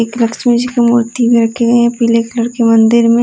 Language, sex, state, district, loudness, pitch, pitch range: Hindi, female, Delhi, New Delhi, -11 LUFS, 235 Hz, 230-240 Hz